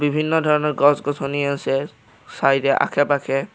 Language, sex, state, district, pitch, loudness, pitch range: Assamese, male, Assam, Kamrup Metropolitan, 145 Hz, -19 LUFS, 140-150 Hz